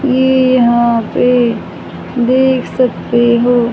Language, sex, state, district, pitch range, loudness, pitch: Hindi, male, Haryana, Charkhi Dadri, 235-255 Hz, -12 LUFS, 245 Hz